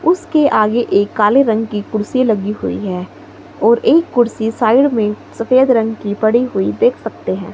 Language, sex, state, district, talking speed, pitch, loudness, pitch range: Hindi, female, Himachal Pradesh, Shimla, 185 wpm, 225 Hz, -15 LUFS, 210-255 Hz